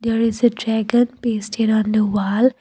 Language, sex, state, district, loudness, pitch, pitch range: English, female, Assam, Kamrup Metropolitan, -19 LUFS, 225 Hz, 215-240 Hz